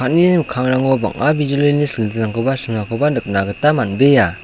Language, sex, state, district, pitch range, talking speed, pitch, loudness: Garo, male, Meghalaya, South Garo Hills, 110-145 Hz, 110 wpm, 130 Hz, -16 LUFS